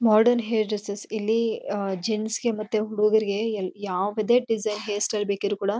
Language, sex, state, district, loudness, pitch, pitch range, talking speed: Kannada, female, Karnataka, Chamarajanagar, -25 LUFS, 215 Hz, 205-220 Hz, 155 wpm